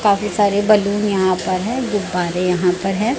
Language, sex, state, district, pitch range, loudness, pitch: Hindi, female, Chhattisgarh, Raipur, 185-210 Hz, -17 LUFS, 200 Hz